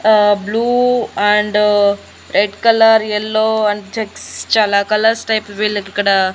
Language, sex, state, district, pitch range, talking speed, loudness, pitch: Telugu, female, Andhra Pradesh, Annamaya, 205-220 Hz, 125 wpm, -14 LUFS, 210 Hz